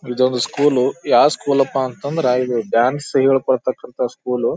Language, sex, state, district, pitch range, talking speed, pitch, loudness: Kannada, male, Karnataka, Bijapur, 125-140 Hz, 170 wpm, 130 Hz, -18 LUFS